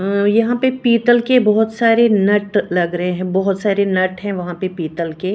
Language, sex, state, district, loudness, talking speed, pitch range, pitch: Hindi, female, Maharashtra, Washim, -16 LUFS, 215 wpm, 185-230 Hz, 200 Hz